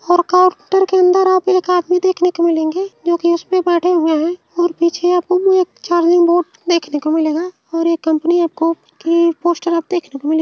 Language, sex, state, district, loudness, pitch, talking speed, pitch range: Bhojpuri, female, Uttar Pradesh, Ghazipur, -15 LUFS, 345 Hz, 200 wpm, 335-360 Hz